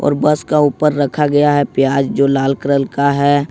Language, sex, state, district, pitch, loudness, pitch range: Hindi, male, Jharkhand, Ranchi, 145 Hz, -14 LUFS, 140-150 Hz